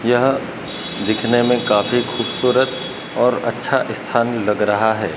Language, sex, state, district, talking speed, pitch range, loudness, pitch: Hindi, male, Madhya Pradesh, Dhar, 130 wpm, 110-125 Hz, -18 LUFS, 120 Hz